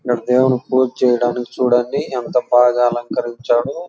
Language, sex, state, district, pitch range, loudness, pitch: Telugu, male, Andhra Pradesh, Chittoor, 120-125 Hz, -17 LUFS, 125 Hz